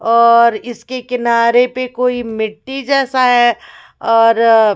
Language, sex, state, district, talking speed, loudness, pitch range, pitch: Hindi, female, Bihar, West Champaran, 115 wpm, -13 LUFS, 230-250 Hz, 240 Hz